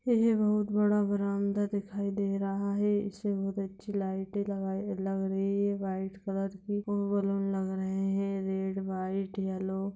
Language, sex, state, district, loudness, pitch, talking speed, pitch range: Hindi, female, Jharkhand, Sahebganj, -32 LUFS, 195 Hz, 150 wpm, 195-200 Hz